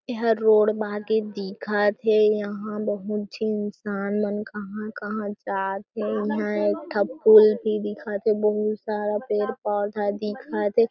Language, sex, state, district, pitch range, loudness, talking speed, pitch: Chhattisgarhi, female, Chhattisgarh, Jashpur, 205-215 Hz, -24 LUFS, 135 wpm, 210 Hz